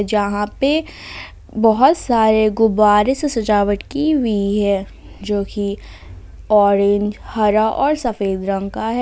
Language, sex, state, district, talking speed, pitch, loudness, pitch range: Hindi, female, Jharkhand, Ranchi, 125 wpm, 210 Hz, -17 LUFS, 200-230 Hz